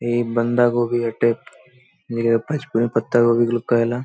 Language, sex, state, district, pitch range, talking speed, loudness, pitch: Bhojpuri, male, Bihar, Saran, 115-120 Hz, 150 wpm, -20 LUFS, 120 Hz